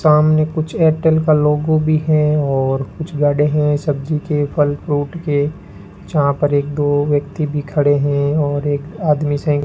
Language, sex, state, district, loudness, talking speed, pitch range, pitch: Hindi, male, Rajasthan, Bikaner, -16 LUFS, 180 wpm, 145-155 Hz, 150 Hz